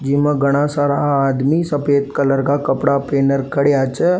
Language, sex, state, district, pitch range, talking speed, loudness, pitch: Rajasthani, male, Rajasthan, Nagaur, 140-145 Hz, 155 wpm, -16 LUFS, 140 Hz